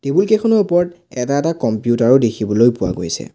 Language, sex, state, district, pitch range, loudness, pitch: Assamese, male, Assam, Sonitpur, 115-175 Hz, -16 LUFS, 125 Hz